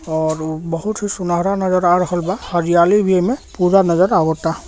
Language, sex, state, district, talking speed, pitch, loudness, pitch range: Bhojpuri, male, Bihar, Gopalganj, 195 wpm, 175 Hz, -16 LUFS, 165-190 Hz